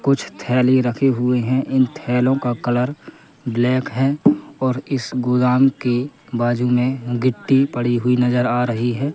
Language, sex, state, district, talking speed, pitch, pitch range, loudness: Hindi, male, Madhya Pradesh, Katni, 155 wpm, 125 Hz, 120-135 Hz, -19 LUFS